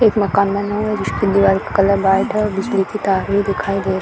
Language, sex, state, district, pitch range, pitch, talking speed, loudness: Hindi, female, Uttar Pradesh, Varanasi, 195-205 Hz, 200 Hz, 285 wpm, -17 LUFS